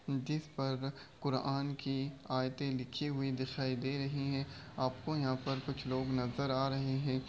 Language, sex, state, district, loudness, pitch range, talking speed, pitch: Hindi, male, Bihar, Begusarai, -37 LUFS, 130-140 Hz, 165 wpm, 135 Hz